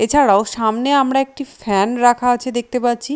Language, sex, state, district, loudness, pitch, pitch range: Bengali, female, Odisha, Nuapada, -16 LUFS, 245 Hz, 225-270 Hz